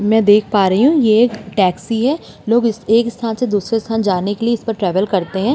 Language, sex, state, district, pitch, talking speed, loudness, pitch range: Hindi, female, Uttar Pradesh, Jyotiba Phule Nagar, 220 Hz, 215 wpm, -15 LUFS, 200-235 Hz